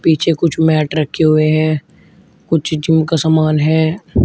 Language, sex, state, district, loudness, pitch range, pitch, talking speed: Hindi, male, Uttar Pradesh, Shamli, -14 LUFS, 155-160 Hz, 160 Hz, 155 wpm